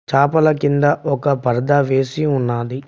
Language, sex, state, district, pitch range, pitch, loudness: Telugu, male, Telangana, Mahabubabad, 130-145 Hz, 140 Hz, -17 LUFS